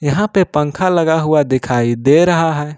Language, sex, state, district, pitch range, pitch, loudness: Hindi, male, Jharkhand, Ranchi, 145-170 Hz, 150 Hz, -14 LUFS